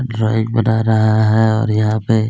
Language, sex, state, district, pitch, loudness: Hindi, male, Chhattisgarh, Kabirdham, 110 Hz, -15 LUFS